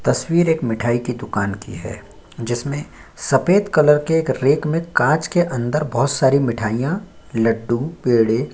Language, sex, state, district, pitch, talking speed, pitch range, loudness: Hindi, male, Chhattisgarh, Korba, 130 Hz, 155 wpm, 115-155 Hz, -19 LUFS